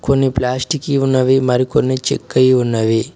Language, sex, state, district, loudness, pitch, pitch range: Telugu, male, Telangana, Mahabubabad, -15 LUFS, 130 Hz, 125-135 Hz